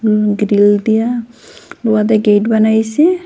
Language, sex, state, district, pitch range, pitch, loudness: Bengali, female, Assam, Hailakandi, 210-240 Hz, 220 Hz, -13 LUFS